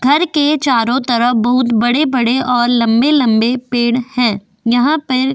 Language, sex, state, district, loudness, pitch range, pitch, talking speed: Hindi, female, Goa, North and South Goa, -14 LUFS, 235-265 Hz, 245 Hz, 145 wpm